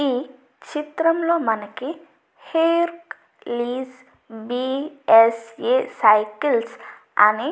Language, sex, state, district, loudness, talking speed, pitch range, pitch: Telugu, female, Andhra Pradesh, Chittoor, -20 LUFS, 110 wpm, 230-325 Hz, 265 Hz